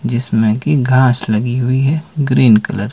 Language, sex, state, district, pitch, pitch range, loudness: Hindi, male, Himachal Pradesh, Shimla, 125 Hz, 110-135 Hz, -14 LUFS